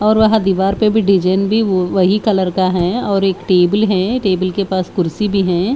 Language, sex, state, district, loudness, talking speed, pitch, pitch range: Hindi, female, Haryana, Charkhi Dadri, -15 LUFS, 230 wpm, 195 Hz, 185-210 Hz